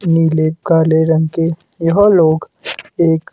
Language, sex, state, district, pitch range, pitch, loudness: Hindi, male, Himachal Pradesh, Shimla, 160-165 Hz, 165 Hz, -14 LUFS